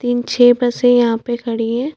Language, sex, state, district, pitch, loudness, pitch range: Hindi, female, Chhattisgarh, Bastar, 245 Hz, -15 LUFS, 235-245 Hz